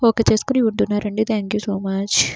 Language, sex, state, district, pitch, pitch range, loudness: Telugu, female, Andhra Pradesh, Srikakulam, 210 Hz, 205-225 Hz, -19 LUFS